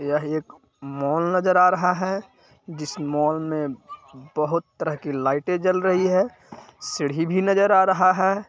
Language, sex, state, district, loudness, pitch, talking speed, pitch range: Hindi, male, Bihar, Jahanabad, -22 LUFS, 180 Hz, 170 wpm, 150-190 Hz